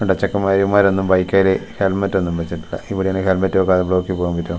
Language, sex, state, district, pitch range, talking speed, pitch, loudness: Malayalam, male, Kerala, Wayanad, 90-95 Hz, 170 wpm, 95 Hz, -17 LUFS